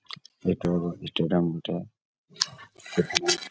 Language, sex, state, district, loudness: Bengali, male, West Bengal, Malda, -28 LUFS